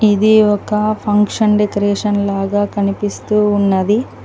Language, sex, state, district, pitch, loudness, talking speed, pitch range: Telugu, female, Telangana, Mahabubabad, 205 Hz, -15 LUFS, 100 wpm, 205-210 Hz